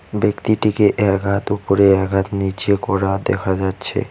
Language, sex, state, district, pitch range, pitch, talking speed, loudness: Bengali, male, West Bengal, Alipurduar, 95-105 Hz, 100 Hz, 145 wpm, -18 LUFS